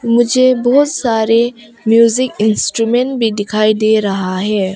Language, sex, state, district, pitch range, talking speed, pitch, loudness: Hindi, female, Arunachal Pradesh, Longding, 215-240 Hz, 125 wpm, 225 Hz, -13 LUFS